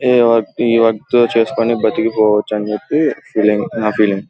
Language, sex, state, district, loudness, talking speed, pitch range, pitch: Telugu, male, Andhra Pradesh, Guntur, -15 LUFS, 155 wpm, 105-115 Hz, 110 Hz